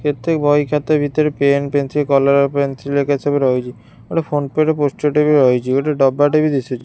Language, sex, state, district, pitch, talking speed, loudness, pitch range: Odia, female, Odisha, Khordha, 145 Hz, 210 wpm, -16 LUFS, 140-150 Hz